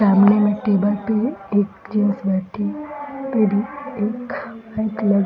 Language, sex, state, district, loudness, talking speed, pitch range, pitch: Hindi, female, Bihar, Darbhanga, -20 LUFS, 105 wpm, 205-230 Hz, 210 Hz